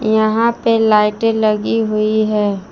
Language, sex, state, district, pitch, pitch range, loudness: Hindi, female, Jharkhand, Palamu, 215 Hz, 210-225 Hz, -15 LUFS